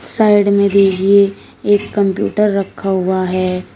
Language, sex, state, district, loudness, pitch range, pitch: Hindi, female, Uttar Pradesh, Shamli, -14 LUFS, 190-205 Hz, 200 Hz